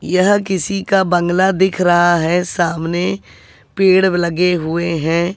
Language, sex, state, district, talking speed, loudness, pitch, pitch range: Hindi, male, Delhi, New Delhi, 135 wpm, -15 LUFS, 175 Hz, 165-190 Hz